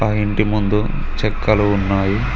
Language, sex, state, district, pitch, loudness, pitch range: Telugu, male, Telangana, Mahabubabad, 105 Hz, -18 LUFS, 100-105 Hz